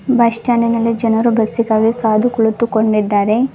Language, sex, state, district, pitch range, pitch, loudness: Kannada, female, Karnataka, Bangalore, 220-235 Hz, 230 Hz, -14 LUFS